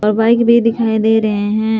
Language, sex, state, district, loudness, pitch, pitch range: Hindi, female, Jharkhand, Palamu, -13 LUFS, 220 Hz, 215-230 Hz